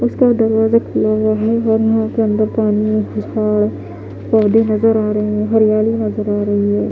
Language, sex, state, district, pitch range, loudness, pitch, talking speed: Hindi, female, Haryana, Jhajjar, 210-225 Hz, -15 LUFS, 215 Hz, 180 wpm